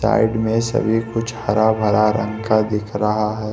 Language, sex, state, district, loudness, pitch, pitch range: Hindi, male, Bihar, West Champaran, -19 LUFS, 110 Hz, 105-110 Hz